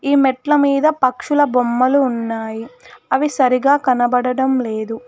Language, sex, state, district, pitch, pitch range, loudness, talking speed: Telugu, female, Telangana, Hyderabad, 260 Hz, 245-280 Hz, -16 LUFS, 120 wpm